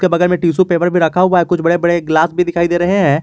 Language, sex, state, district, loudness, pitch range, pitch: Hindi, male, Jharkhand, Garhwa, -13 LUFS, 170-180 Hz, 175 Hz